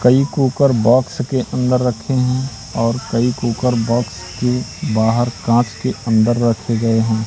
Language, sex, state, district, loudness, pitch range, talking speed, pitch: Hindi, male, Madhya Pradesh, Katni, -17 LUFS, 115-125 Hz, 155 wpm, 120 Hz